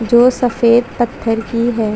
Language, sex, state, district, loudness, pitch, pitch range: Hindi, female, Chhattisgarh, Bastar, -14 LUFS, 235 Hz, 225-240 Hz